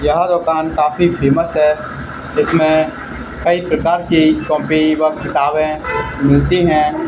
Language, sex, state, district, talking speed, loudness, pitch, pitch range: Hindi, male, Haryana, Charkhi Dadri, 120 wpm, -15 LUFS, 155 Hz, 150-165 Hz